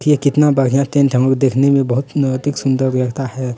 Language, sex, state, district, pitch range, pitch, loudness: Hindi, male, Bihar, Bhagalpur, 130-140 Hz, 135 Hz, -15 LUFS